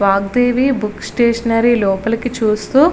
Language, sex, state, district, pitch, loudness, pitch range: Telugu, female, Andhra Pradesh, Visakhapatnam, 230 Hz, -15 LUFS, 210-245 Hz